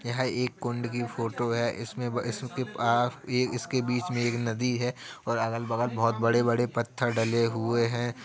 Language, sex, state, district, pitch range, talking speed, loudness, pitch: Hindi, female, Uttar Pradesh, Jalaun, 115-125 Hz, 190 wpm, -29 LUFS, 120 Hz